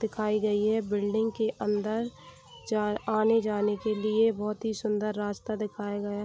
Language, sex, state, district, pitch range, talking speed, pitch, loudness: Hindi, female, Bihar, Gopalganj, 210-220 Hz, 165 wpm, 215 Hz, -29 LUFS